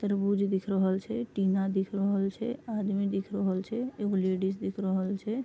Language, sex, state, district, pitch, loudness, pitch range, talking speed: Maithili, female, Bihar, Vaishali, 200 Hz, -30 LUFS, 195-210 Hz, 185 wpm